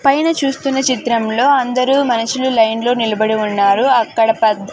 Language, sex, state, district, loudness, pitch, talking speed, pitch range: Telugu, female, Andhra Pradesh, Sri Satya Sai, -14 LUFS, 245 Hz, 125 wpm, 220-265 Hz